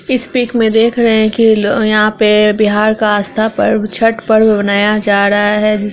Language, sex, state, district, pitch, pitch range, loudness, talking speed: Hindi, female, Bihar, Araria, 215 Hz, 210-225 Hz, -11 LUFS, 210 wpm